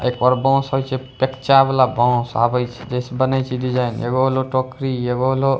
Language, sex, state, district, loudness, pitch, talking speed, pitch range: Angika, male, Bihar, Bhagalpur, -19 LUFS, 130 Hz, 180 wpm, 125-130 Hz